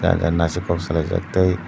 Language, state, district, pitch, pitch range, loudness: Kokborok, Tripura, Dhalai, 85 Hz, 85-90 Hz, -21 LUFS